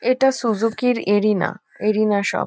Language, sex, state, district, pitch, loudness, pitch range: Bengali, female, West Bengal, Kolkata, 215 Hz, -20 LUFS, 205-250 Hz